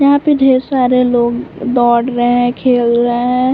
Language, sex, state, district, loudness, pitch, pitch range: Hindi, female, Uttar Pradesh, Varanasi, -13 LUFS, 250 Hz, 240-260 Hz